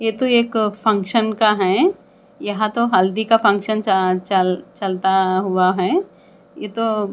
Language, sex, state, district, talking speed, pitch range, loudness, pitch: Hindi, female, Bihar, Katihar, 170 wpm, 190-225 Hz, -18 LUFS, 210 Hz